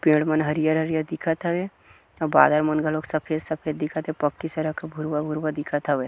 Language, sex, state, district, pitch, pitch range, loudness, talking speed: Chhattisgarhi, male, Chhattisgarh, Kabirdham, 155 Hz, 150-160 Hz, -24 LUFS, 215 wpm